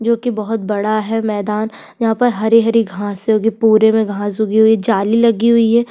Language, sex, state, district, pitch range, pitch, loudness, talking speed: Hindi, female, Uttar Pradesh, Budaun, 215-230 Hz, 220 Hz, -15 LUFS, 215 wpm